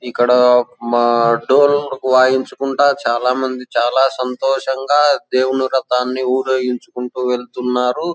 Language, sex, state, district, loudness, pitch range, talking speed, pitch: Telugu, male, Andhra Pradesh, Anantapur, -16 LUFS, 125-130 Hz, 95 wpm, 130 Hz